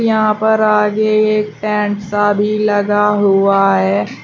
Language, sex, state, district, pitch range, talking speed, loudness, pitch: Hindi, female, Uttar Pradesh, Shamli, 205-215 Hz, 140 wpm, -14 LUFS, 210 Hz